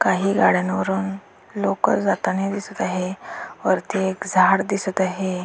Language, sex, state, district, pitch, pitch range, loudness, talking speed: Marathi, female, Maharashtra, Dhule, 190 Hz, 180-195 Hz, -21 LUFS, 120 wpm